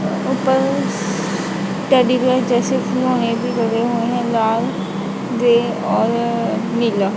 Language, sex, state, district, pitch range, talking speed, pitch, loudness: Hindi, female, Punjab, Pathankot, 230-245 Hz, 110 wpm, 235 Hz, -18 LUFS